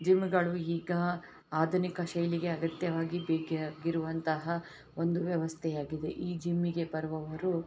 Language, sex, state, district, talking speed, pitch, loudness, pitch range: Kannada, female, Karnataka, Bellary, 110 wpm, 170 Hz, -33 LUFS, 160-175 Hz